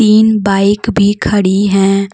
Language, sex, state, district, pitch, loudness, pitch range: Hindi, female, Jharkhand, Deoghar, 200 Hz, -11 LUFS, 195-210 Hz